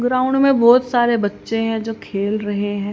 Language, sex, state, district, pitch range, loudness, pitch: Hindi, female, Haryana, Rohtak, 205-245 Hz, -17 LUFS, 225 Hz